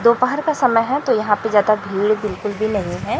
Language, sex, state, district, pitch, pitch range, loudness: Hindi, female, Chhattisgarh, Raipur, 215 Hz, 210-250 Hz, -18 LUFS